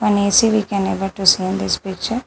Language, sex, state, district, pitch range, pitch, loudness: English, female, Telangana, Hyderabad, 190-210 Hz, 200 Hz, -17 LUFS